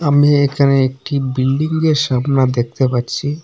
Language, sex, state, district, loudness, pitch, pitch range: Bengali, male, Assam, Hailakandi, -15 LUFS, 140 Hz, 130-145 Hz